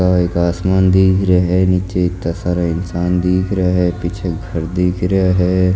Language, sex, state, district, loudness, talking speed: Rajasthani, male, Rajasthan, Nagaur, -16 LUFS, 200 wpm